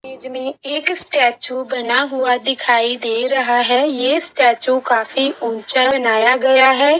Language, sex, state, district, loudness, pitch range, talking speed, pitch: Hindi, female, Uttar Pradesh, Budaun, -15 LUFS, 245-270 Hz, 145 wpm, 260 Hz